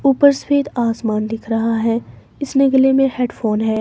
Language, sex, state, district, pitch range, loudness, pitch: Hindi, female, Himachal Pradesh, Shimla, 225-275 Hz, -17 LUFS, 240 Hz